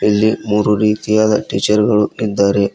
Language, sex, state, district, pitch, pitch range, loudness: Kannada, male, Karnataka, Koppal, 105 Hz, 105-110 Hz, -15 LUFS